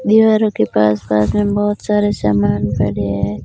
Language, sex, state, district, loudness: Hindi, female, Rajasthan, Bikaner, -15 LUFS